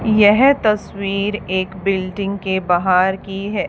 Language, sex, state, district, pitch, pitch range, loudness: Hindi, female, Haryana, Charkhi Dadri, 195 Hz, 190-210 Hz, -17 LUFS